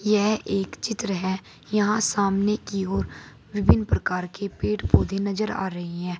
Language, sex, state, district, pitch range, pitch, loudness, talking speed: Hindi, female, Uttar Pradesh, Saharanpur, 175-205 Hz, 195 Hz, -25 LUFS, 165 wpm